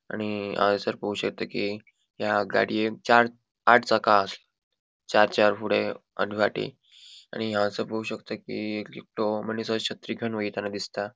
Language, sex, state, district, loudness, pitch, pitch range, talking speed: Konkani, male, Goa, North and South Goa, -26 LUFS, 105 Hz, 105-110 Hz, 150 wpm